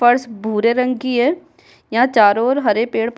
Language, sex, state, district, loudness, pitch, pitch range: Hindi, female, Bihar, Kishanganj, -16 LUFS, 245 Hz, 225-255 Hz